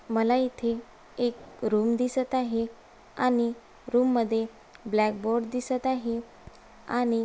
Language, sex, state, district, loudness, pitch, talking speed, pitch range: Marathi, female, Maharashtra, Aurangabad, -28 LUFS, 235 Hz, 115 wpm, 230-250 Hz